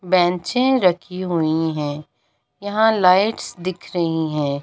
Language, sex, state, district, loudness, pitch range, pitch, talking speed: Hindi, female, Bihar, Jamui, -19 LUFS, 155-185 Hz, 175 Hz, 115 wpm